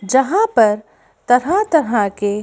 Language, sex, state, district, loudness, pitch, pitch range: Hindi, female, Madhya Pradesh, Bhopal, -16 LUFS, 245 Hz, 210-320 Hz